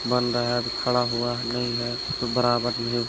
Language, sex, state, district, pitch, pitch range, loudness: Hindi, female, Chhattisgarh, Balrampur, 120 Hz, 120-125 Hz, -24 LUFS